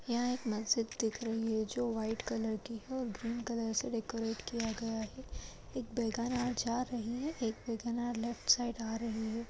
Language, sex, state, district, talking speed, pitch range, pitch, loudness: Hindi, female, Uttar Pradesh, Jalaun, 195 wpm, 225-240 Hz, 230 Hz, -36 LUFS